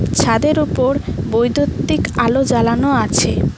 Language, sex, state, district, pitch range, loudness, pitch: Bengali, female, West Bengal, Cooch Behar, 235-270 Hz, -16 LUFS, 240 Hz